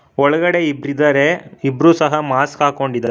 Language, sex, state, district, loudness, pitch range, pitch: Kannada, male, Karnataka, Bangalore, -15 LUFS, 140-160 Hz, 145 Hz